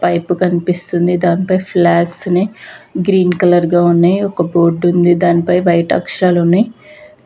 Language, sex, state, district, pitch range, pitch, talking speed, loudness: Telugu, female, Andhra Pradesh, Visakhapatnam, 175-185 Hz, 175 Hz, 130 wpm, -13 LUFS